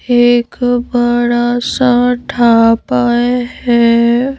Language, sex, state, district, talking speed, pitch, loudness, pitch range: Hindi, female, Madhya Pradesh, Bhopal, 70 wpm, 240 Hz, -12 LUFS, 235-245 Hz